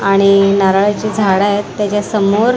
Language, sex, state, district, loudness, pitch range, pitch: Marathi, female, Maharashtra, Mumbai Suburban, -13 LUFS, 195-210 Hz, 205 Hz